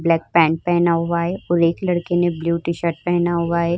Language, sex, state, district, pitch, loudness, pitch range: Hindi, female, Uttar Pradesh, Hamirpur, 170 Hz, -19 LUFS, 170-175 Hz